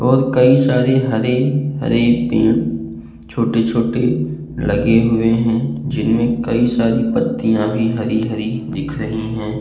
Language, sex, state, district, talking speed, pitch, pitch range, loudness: Hindi, male, Uttar Pradesh, Jalaun, 120 wpm, 115 Hz, 110-125 Hz, -16 LUFS